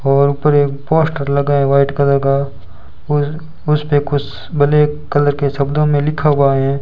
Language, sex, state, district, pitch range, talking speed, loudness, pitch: Hindi, male, Rajasthan, Bikaner, 140-150 Hz, 175 wpm, -15 LUFS, 145 Hz